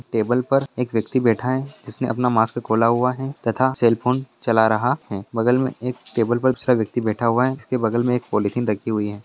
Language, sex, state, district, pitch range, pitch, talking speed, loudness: Hindi, male, Bihar, Jahanabad, 110-125 Hz, 120 Hz, 235 wpm, -21 LUFS